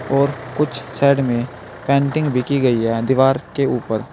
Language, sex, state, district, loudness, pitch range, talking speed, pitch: Hindi, male, Uttar Pradesh, Saharanpur, -18 LUFS, 120-140 Hz, 175 wpm, 130 Hz